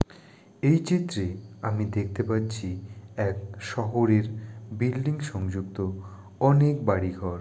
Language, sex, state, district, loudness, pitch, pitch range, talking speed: Bengali, male, West Bengal, Jalpaiguri, -27 LUFS, 105 Hz, 95-120 Hz, 90 wpm